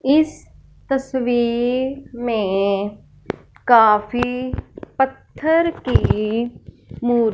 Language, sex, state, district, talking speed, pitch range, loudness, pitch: Hindi, female, Punjab, Fazilka, 55 wpm, 225-265 Hz, -19 LUFS, 240 Hz